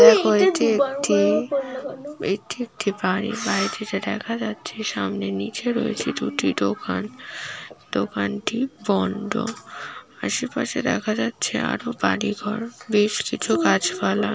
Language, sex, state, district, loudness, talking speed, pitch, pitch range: Bengali, female, West Bengal, Paschim Medinipur, -23 LUFS, 105 wpm, 215 Hz, 185-250 Hz